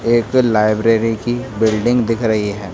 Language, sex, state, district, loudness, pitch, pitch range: Hindi, male, Rajasthan, Jaipur, -16 LUFS, 115 Hz, 110-120 Hz